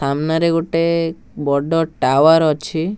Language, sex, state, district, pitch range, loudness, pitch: Odia, male, Odisha, Nuapada, 150-165 Hz, -17 LUFS, 160 Hz